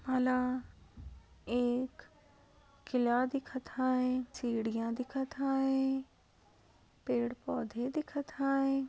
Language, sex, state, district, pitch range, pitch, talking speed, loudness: Hindi, female, Maharashtra, Sindhudurg, 245-270 Hz, 255 Hz, 80 wpm, -34 LUFS